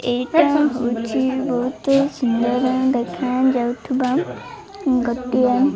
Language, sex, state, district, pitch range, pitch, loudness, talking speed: Odia, female, Odisha, Malkangiri, 245-275 Hz, 255 Hz, -19 LUFS, 85 wpm